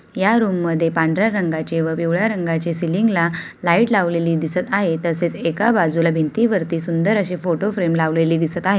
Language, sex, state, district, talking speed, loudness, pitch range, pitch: Marathi, female, Maharashtra, Sindhudurg, 155 wpm, -19 LUFS, 165-200 Hz, 170 Hz